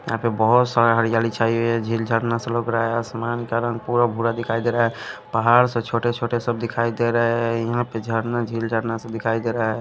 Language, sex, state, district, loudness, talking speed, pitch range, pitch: Hindi, male, Punjab, Kapurthala, -21 LUFS, 250 wpm, 115-120 Hz, 115 Hz